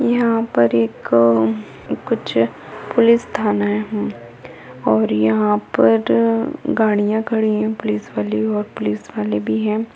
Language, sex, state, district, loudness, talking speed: Hindi, female, Bihar, Lakhisarai, -18 LUFS, 120 wpm